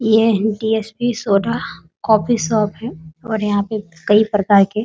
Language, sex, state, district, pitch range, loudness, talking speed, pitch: Hindi, female, Bihar, Muzaffarpur, 205-220 Hz, -17 LUFS, 150 wpm, 215 Hz